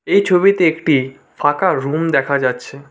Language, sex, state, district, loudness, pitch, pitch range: Bengali, male, West Bengal, Cooch Behar, -15 LUFS, 145 Hz, 135-175 Hz